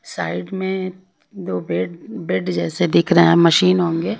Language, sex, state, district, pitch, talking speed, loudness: Hindi, female, Haryana, Rohtak, 170 Hz, 155 wpm, -18 LUFS